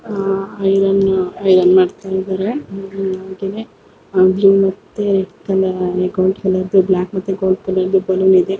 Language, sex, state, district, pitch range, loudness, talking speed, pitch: Kannada, female, Karnataka, Shimoga, 185-195 Hz, -16 LUFS, 120 wpm, 190 Hz